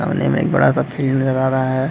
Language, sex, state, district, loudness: Hindi, male, Bihar, Madhepura, -17 LUFS